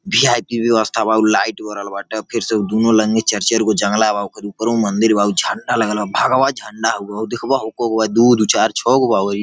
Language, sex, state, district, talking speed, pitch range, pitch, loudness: Bhojpuri, male, Uttar Pradesh, Gorakhpur, 250 wpm, 105-115 Hz, 110 Hz, -16 LUFS